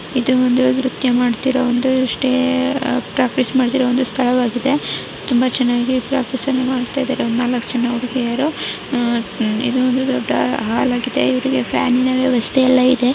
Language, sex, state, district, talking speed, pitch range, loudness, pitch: Kannada, female, Karnataka, Dharwad, 125 wpm, 245-260 Hz, -17 LUFS, 255 Hz